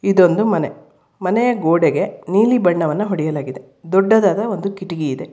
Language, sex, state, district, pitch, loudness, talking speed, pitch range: Kannada, female, Karnataka, Bangalore, 185 Hz, -17 LUFS, 125 wpm, 165-210 Hz